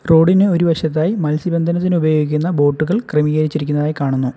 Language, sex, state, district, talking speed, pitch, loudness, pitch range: Malayalam, male, Kerala, Kollam, 110 wpm, 155 Hz, -16 LUFS, 150-170 Hz